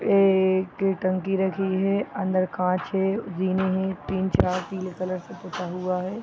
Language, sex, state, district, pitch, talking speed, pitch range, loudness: Hindi, female, Bihar, East Champaran, 190 Hz, 165 wpm, 185-195 Hz, -25 LUFS